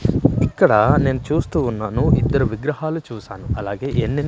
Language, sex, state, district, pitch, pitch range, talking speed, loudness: Telugu, male, Andhra Pradesh, Manyam, 130 Hz, 110-145 Hz, 125 wpm, -19 LUFS